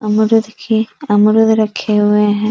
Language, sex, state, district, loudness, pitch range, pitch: Hindi, female, Bihar, East Champaran, -13 LUFS, 210-220 Hz, 215 Hz